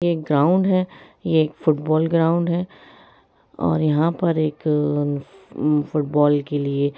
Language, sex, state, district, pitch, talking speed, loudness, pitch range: Hindi, female, Jharkhand, Sahebganj, 155 Hz, 130 wpm, -20 LUFS, 145-170 Hz